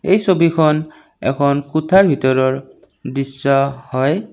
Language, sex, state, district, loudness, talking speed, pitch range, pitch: Assamese, male, Assam, Kamrup Metropolitan, -16 LUFS, 95 wpm, 135-165 Hz, 140 Hz